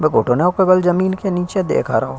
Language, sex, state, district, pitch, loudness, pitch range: Hindi, male, Uttar Pradesh, Hamirpur, 180 Hz, -16 LUFS, 175-190 Hz